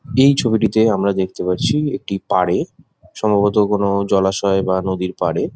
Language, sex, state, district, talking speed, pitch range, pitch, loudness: Bengali, male, West Bengal, Jhargram, 150 wpm, 95-110 Hz, 100 Hz, -17 LUFS